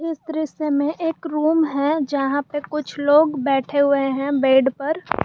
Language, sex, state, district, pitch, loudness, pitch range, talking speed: Hindi, male, Jharkhand, Garhwa, 290 Hz, -20 LUFS, 275-315 Hz, 170 wpm